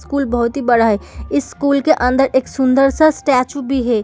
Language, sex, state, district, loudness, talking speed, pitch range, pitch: Hindi, female, Bihar, Samastipur, -15 LUFS, 225 wpm, 245-280 Hz, 270 Hz